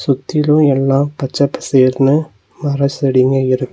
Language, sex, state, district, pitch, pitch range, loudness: Tamil, male, Tamil Nadu, Nilgiris, 135 Hz, 135-145 Hz, -14 LUFS